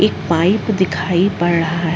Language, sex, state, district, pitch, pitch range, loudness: Hindi, female, Uttar Pradesh, Muzaffarnagar, 175 Hz, 170-190 Hz, -16 LUFS